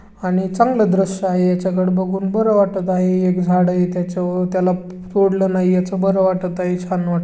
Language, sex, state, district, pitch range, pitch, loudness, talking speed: Marathi, female, Maharashtra, Chandrapur, 180-190 Hz, 185 Hz, -18 LUFS, 180 wpm